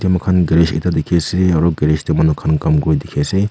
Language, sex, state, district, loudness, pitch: Nagamese, male, Nagaland, Kohima, -15 LUFS, 90 Hz